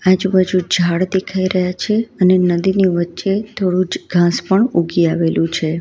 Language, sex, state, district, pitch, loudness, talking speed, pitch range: Gujarati, female, Gujarat, Valsad, 185 Hz, -16 LUFS, 145 wpm, 175-190 Hz